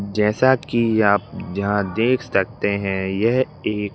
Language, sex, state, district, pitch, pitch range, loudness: Hindi, male, Madhya Pradesh, Bhopal, 105 Hz, 100-120 Hz, -20 LUFS